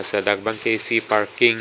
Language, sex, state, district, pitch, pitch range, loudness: Karbi, male, Assam, Karbi Anglong, 110 Hz, 105-115 Hz, -20 LUFS